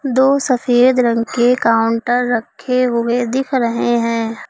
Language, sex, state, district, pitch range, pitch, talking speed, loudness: Hindi, female, Uttar Pradesh, Lucknow, 230-255 Hz, 245 Hz, 135 wpm, -15 LUFS